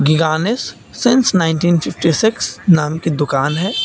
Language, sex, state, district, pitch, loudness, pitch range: Hindi, male, Uttar Pradesh, Lucknow, 165 Hz, -15 LUFS, 155-205 Hz